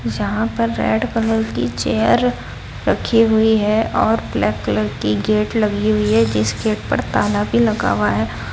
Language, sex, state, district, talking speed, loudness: Hindi, female, Odisha, Sambalpur, 170 wpm, -17 LUFS